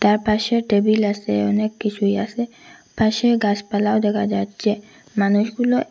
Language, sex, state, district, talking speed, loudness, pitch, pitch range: Bengali, female, Assam, Hailakandi, 120 wpm, -20 LUFS, 210 Hz, 205-225 Hz